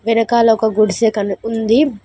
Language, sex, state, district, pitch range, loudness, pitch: Telugu, female, Telangana, Mahabubabad, 215-230 Hz, -15 LUFS, 225 Hz